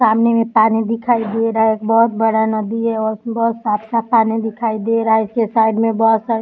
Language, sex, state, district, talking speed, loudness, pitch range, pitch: Hindi, female, Uttar Pradesh, Deoria, 245 wpm, -16 LUFS, 220-230 Hz, 225 Hz